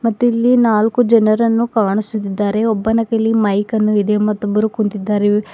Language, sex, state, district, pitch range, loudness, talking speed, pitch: Kannada, female, Karnataka, Bidar, 210-230 Hz, -15 LUFS, 120 wpm, 215 Hz